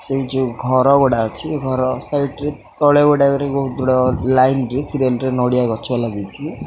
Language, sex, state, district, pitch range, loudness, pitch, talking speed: Odia, male, Odisha, Khordha, 125-140 Hz, -17 LUFS, 130 Hz, 160 wpm